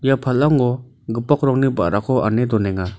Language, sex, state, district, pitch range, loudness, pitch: Garo, male, Meghalaya, North Garo Hills, 110-135 Hz, -18 LUFS, 125 Hz